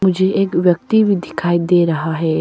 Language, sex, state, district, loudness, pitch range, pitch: Hindi, female, Arunachal Pradesh, Papum Pare, -16 LUFS, 170-190 Hz, 175 Hz